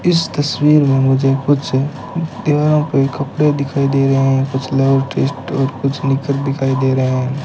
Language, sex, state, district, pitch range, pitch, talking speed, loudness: Hindi, male, Rajasthan, Bikaner, 135-145 Hz, 135 Hz, 170 wpm, -16 LUFS